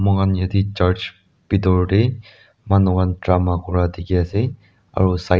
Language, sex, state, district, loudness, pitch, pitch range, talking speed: Nagamese, male, Nagaland, Dimapur, -19 LUFS, 95 Hz, 90-100 Hz, 155 wpm